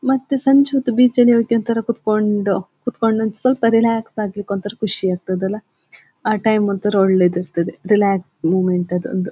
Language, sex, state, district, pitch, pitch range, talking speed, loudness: Kannada, female, Karnataka, Dakshina Kannada, 215 Hz, 190-235 Hz, 155 wpm, -18 LUFS